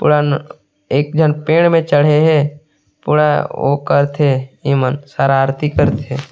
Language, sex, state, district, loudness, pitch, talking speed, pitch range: Chhattisgarhi, male, Chhattisgarh, Sarguja, -14 LUFS, 145 Hz, 105 wpm, 140-150 Hz